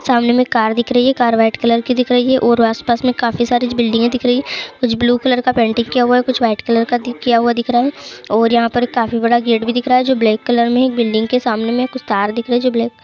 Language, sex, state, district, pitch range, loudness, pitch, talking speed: Hindi, female, Uttar Pradesh, Jyotiba Phule Nagar, 230-250 Hz, -15 LUFS, 240 Hz, 320 wpm